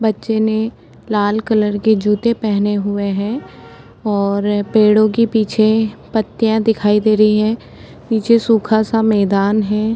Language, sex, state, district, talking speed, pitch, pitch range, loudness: Hindi, female, Uttar Pradesh, Etah, 145 wpm, 215 Hz, 210-220 Hz, -15 LUFS